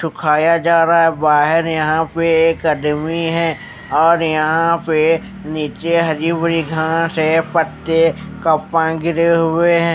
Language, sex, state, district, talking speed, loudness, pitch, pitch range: Hindi, male, Maharashtra, Mumbai Suburban, 135 wpm, -15 LUFS, 165 Hz, 160-165 Hz